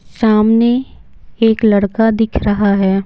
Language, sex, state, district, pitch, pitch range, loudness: Hindi, female, Bihar, Patna, 220 Hz, 205-225 Hz, -13 LUFS